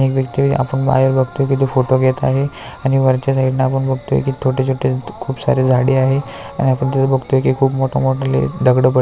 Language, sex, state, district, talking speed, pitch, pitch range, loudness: Marathi, male, Maharashtra, Aurangabad, 215 wpm, 130 Hz, 130-135 Hz, -16 LUFS